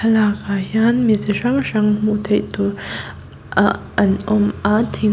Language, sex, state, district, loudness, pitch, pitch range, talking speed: Mizo, female, Mizoram, Aizawl, -18 LUFS, 210 Hz, 205-220 Hz, 165 wpm